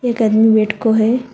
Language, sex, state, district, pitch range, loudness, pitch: Hindi, female, Telangana, Hyderabad, 220-240 Hz, -14 LUFS, 225 Hz